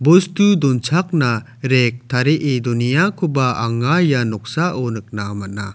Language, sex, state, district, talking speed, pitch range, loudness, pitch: Garo, male, Meghalaya, South Garo Hills, 105 wpm, 120-160 Hz, -17 LUFS, 130 Hz